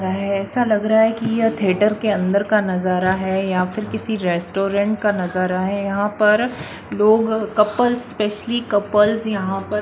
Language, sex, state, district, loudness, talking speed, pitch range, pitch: Hindi, female, Maharashtra, Washim, -19 LUFS, 165 wpm, 195-220 Hz, 210 Hz